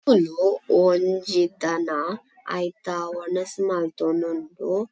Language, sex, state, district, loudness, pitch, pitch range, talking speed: Tulu, female, Karnataka, Dakshina Kannada, -24 LUFS, 180 Hz, 170-190 Hz, 85 wpm